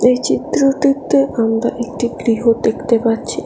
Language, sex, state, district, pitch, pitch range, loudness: Bengali, female, West Bengal, Alipurduar, 240 Hz, 230-270 Hz, -16 LUFS